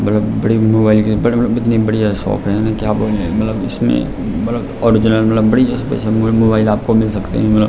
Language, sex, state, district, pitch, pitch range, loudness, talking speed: Hindi, male, Uttarakhand, Tehri Garhwal, 110 Hz, 105-110 Hz, -14 LUFS, 195 wpm